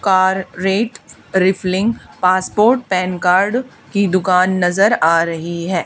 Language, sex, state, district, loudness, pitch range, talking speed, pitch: Hindi, female, Haryana, Charkhi Dadri, -16 LUFS, 180-200 Hz, 110 wpm, 185 Hz